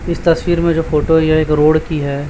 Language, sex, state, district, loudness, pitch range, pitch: Hindi, male, Chhattisgarh, Raipur, -14 LUFS, 150-165 Hz, 155 Hz